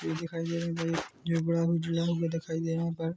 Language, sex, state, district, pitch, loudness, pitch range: Hindi, male, Chhattisgarh, Korba, 165 Hz, -31 LUFS, 165-170 Hz